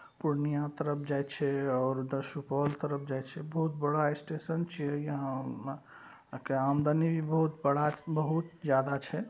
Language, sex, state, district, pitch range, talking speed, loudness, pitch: Maithili, male, Bihar, Saharsa, 140-155 Hz, 155 wpm, -32 LUFS, 145 Hz